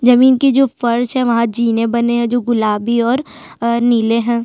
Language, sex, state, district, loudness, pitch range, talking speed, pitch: Hindi, female, Chhattisgarh, Sukma, -15 LUFS, 235-245 Hz, 190 wpm, 235 Hz